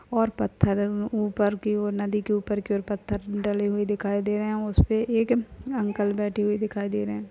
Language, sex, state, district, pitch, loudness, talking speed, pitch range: Hindi, female, Maharashtra, Sindhudurg, 205 Hz, -26 LUFS, 220 wpm, 205-215 Hz